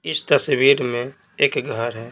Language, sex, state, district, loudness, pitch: Hindi, male, Bihar, Patna, -19 LUFS, 120 Hz